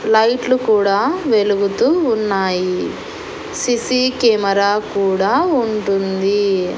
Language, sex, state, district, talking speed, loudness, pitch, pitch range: Telugu, female, Andhra Pradesh, Annamaya, 70 wpm, -16 LUFS, 215 Hz, 200-255 Hz